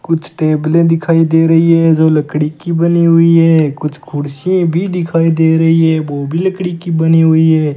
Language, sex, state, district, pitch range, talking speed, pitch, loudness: Hindi, male, Rajasthan, Bikaner, 155-165 Hz, 200 wpm, 165 Hz, -12 LUFS